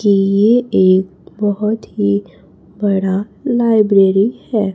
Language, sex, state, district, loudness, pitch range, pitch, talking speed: Hindi, female, Chhattisgarh, Raipur, -15 LUFS, 190-215 Hz, 200 Hz, 100 wpm